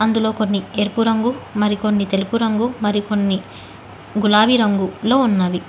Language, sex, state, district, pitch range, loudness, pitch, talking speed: Telugu, female, Telangana, Hyderabad, 195-225 Hz, -18 LUFS, 210 Hz, 115 wpm